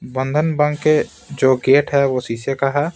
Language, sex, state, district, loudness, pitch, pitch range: Hindi, male, Bihar, Patna, -17 LUFS, 140 Hz, 130-150 Hz